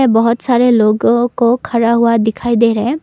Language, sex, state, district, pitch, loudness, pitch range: Hindi, female, Assam, Kamrup Metropolitan, 235 Hz, -13 LUFS, 230-240 Hz